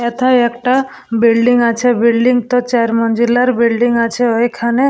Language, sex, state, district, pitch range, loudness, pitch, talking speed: Bengali, female, West Bengal, Purulia, 235-245 Hz, -13 LUFS, 240 Hz, 135 wpm